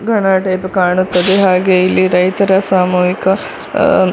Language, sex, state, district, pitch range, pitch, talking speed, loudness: Kannada, female, Karnataka, Dakshina Kannada, 180-195 Hz, 185 Hz, 115 wpm, -12 LUFS